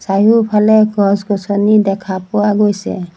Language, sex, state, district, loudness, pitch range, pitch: Assamese, female, Assam, Sonitpur, -13 LUFS, 195-215 Hz, 205 Hz